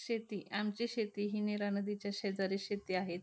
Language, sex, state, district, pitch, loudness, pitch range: Marathi, female, Maharashtra, Pune, 205 Hz, -38 LUFS, 200-210 Hz